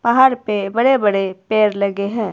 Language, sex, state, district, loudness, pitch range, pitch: Hindi, female, Himachal Pradesh, Shimla, -17 LUFS, 200-235 Hz, 210 Hz